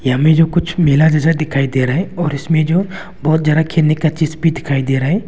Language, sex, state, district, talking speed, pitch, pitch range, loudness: Hindi, male, Arunachal Pradesh, Longding, 250 wpm, 155 Hz, 145-165 Hz, -15 LUFS